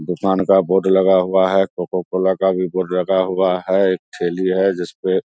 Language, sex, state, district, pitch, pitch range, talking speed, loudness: Hindi, male, Bihar, Vaishali, 95 Hz, 90-95 Hz, 215 wpm, -17 LUFS